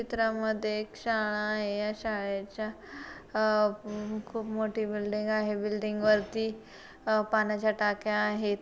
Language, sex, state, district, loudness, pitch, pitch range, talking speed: Marathi, female, Maharashtra, Chandrapur, -30 LUFS, 215 Hz, 210-220 Hz, 125 wpm